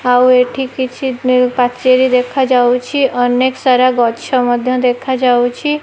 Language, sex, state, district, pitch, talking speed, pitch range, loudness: Odia, female, Odisha, Malkangiri, 250 Hz, 115 wpm, 245-260 Hz, -13 LUFS